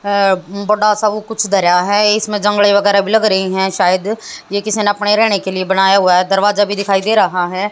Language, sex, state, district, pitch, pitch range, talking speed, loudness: Hindi, female, Haryana, Jhajjar, 200 Hz, 190-210 Hz, 240 wpm, -13 LUFS